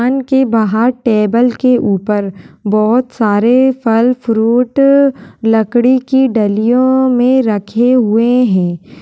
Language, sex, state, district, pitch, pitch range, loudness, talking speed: Kumaoni, female, Uttarakhand, Tehri Garhwal, 240 Hz, 215-255 Hz, -12 LUFS, 115 wpm